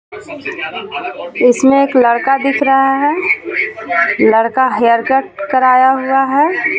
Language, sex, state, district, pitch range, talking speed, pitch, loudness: Hindi, female, Jharkhand, Ranchi, 255-300 Hz, 95 wpm, 270 Hz, -12 LUFS